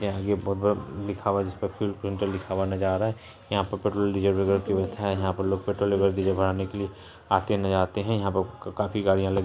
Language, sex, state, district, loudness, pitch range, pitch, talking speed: Hindi, male, Bihar, Saharsa, -27 LUFS, 95-100 Hz, 100 Hz, 160 wpm